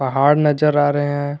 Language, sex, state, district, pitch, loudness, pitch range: Hindi, male, Jharkhand, Garhwa, 145 Hz, -16 LUFS, 145-150 Hz